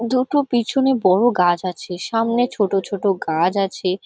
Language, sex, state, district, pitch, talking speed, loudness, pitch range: Bengali, female, West Bengal, Kolkata, 205 Hz, 150 wpm, -19 LUFS, 185-245 Hz